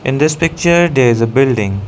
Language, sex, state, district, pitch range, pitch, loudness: English, male, Arunachal Pradesh, Lower Dibang Valley, 120-165 Hz, 135 Hz, -12 LUFS